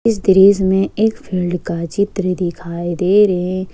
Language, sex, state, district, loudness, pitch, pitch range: Hindi, female, Jharkhand, Ranchi, -16 LUFS, 185 Hz, 180-200 Hz